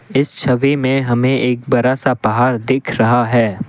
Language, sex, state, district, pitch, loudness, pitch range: Hindi, male, Assam, Kamrup Metropolitan, 125 Hz, -15 LUFS, 120-135 Hz